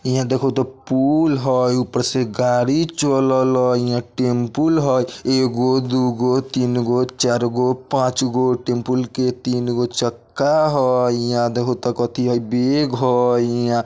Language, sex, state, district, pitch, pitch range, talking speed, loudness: Bajjika, male, Bihar, Vaishali, 125 Hz, 120-130 Hz, 130 wpm, -18 LUFS